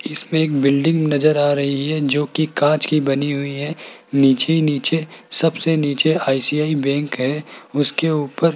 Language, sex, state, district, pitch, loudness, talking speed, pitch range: Hindi, male, Rajasthan, Jaipur, 145 Hz, -18 LUFS, 175 wpm, 140-155 Hz